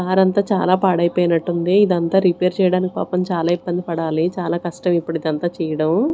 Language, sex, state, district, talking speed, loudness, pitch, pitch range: Telugu, female, Andhra Pradesh, Sri Satya Sai, 175 wpm, -18 LUFS, 175 Hz, 170-185 Hz